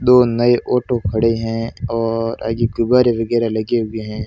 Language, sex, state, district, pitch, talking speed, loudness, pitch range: Hindi, male, Rajasthan, Barmer, 115 Hz, 170 wpm, -17 LUFS, 115-120 Hz